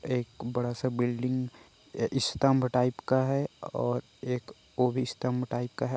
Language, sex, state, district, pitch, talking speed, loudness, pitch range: Chhattisgarhi, male, Chhattisgarh, Korba, 125 Hz, 150 wpm, -30 LUFS, 120-130 Hz